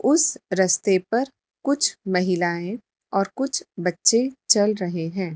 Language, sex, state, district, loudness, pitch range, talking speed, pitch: Hindi, male, Madhya Pradesh, Dhar, -22 LUFS, 180-265 Hz, 125 wpm, 195 Hz